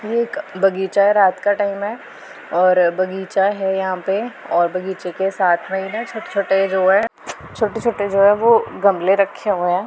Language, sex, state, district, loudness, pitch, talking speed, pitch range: Hindi, female, Punjab, Pathankot, -18 LUFS, 195 Hz, 175 wpm, 190-205 Hz